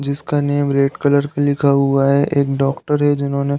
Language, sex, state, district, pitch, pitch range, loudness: Hindi, male, Uttar Pradesh, Deoria, 140 Hz, 140-145 Hz, -16 LUFS